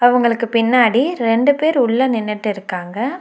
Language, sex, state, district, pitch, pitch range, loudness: Tamil, female, Tamil Nadu, Nilgiris, 235 Hz, 225-255 Hz, -16 LUFS